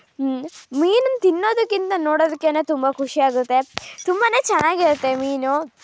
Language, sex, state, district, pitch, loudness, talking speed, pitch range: Kannada, female, Karnataka, Shimoga, 310 Hz, -19 LUFS, 105 wpm, 270-380 Hz